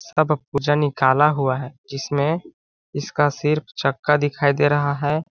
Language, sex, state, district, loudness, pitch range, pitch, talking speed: Hindi, male, Chhattisgarh, Balrampur, -20 LUFS, 140-150 Hz, 145 Hz, 145 wpm